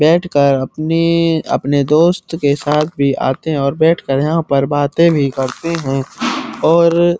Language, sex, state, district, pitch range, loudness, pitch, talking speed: Hindi, male, Uttar Pradesh, Muzaffarnagar, 140-170 Hz, -15 LUFS, 155 Hz, 165 wpm